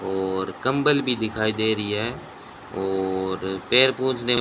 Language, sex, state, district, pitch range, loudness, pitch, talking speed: Hindi, male, Rajasthan, Bikaner, 95-125 Hz, -22 LUFS, 110 Hz, 135 wpm